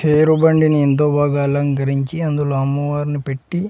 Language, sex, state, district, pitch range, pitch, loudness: Telugu, male, Andhra Pradesh, Sri Satya Sai, 140-155 Hz, 145 Hz, -17 LUFS